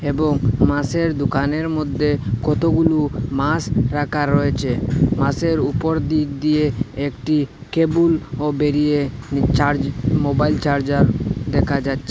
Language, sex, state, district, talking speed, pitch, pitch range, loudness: Bengali, male, Assam, Hailakandi, 110 wpm, 145 Hz, 140-155 Hz, -19 LUFS